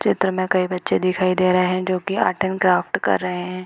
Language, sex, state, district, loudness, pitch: Hindi, female, Bihar, Gopalganj, -20 LUFS, 185 Hz